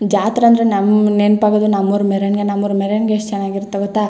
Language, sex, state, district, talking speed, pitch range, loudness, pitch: Kannada, female, Karnataka, Chamarajanagar, 175 wpm, 200-210 Hz, -15 LUFS, 205 Hz